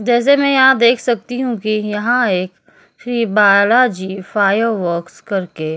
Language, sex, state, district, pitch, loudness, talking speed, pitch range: Hindi, female, Uttar Pradesh, Jyotiba Phule Nagar, 215 Hz, -15 LUFS, 145 wpm, 195-245 Hz